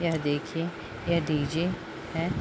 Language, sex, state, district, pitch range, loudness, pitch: Hindi, female, Bihar, Madhepura, 145-170 Hz, -30 LUFS, 160 Hz